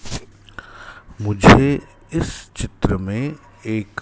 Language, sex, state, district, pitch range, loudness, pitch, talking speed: Hindi, male, Madhya Pradesh, Dhar, 105-155 Hz, -18 LUFS, 120 Hz, 75 wpm